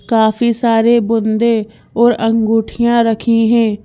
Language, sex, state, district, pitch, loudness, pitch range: Hindi, female, Madhya Pradesh, Bhopal, 225 Hz, -13 LUFS, 220-235 Hz